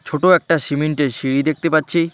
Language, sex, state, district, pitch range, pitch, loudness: Bengali, male, West Bengal, Alipurduar, 145-165 Hz, 155 Hz, -17 LUFS